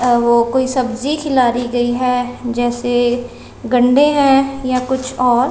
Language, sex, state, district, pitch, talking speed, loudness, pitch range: Hindi, female, Punjab, Kapurthala, 250 Hz, 140 wpm, -15 LUFS, 245-260 Hz